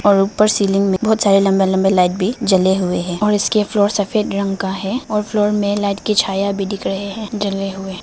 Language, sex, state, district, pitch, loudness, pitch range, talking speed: Hindi, female, Arunachal Pradesh, Papum Pare, 200 Hz, -17 LUFS, 195-210 Hz, 240 wpm